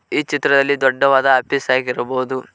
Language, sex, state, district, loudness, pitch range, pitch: Kannada, male, Karnataka, Koppal, -16 LUFS, 130-140 Hz, 135 Hz